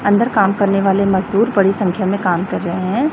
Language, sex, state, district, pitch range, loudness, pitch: Hindi, female, Chhattisgarh, Raipur, 190-205 Hz, -16 LUFS, 195 Hz